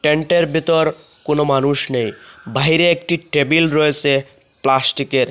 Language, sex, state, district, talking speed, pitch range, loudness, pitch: Bengali, male, Assam, Hailakandi, 115 wpm, 135-160 Hz, -16 LUFS, 150 Hz